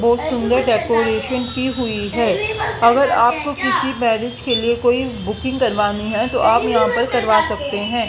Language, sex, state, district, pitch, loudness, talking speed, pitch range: Hindi, female, Haryana, Charkhi Dadri, 235 Hz, -17 LUFS, 180 wpm, 225-255 Hz